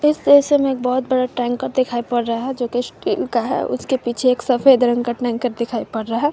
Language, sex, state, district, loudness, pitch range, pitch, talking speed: Hindi, female, Jharkhand, Garhwa, -18 LUFS, 240-260 Hz, 250 Hz, 315 wpm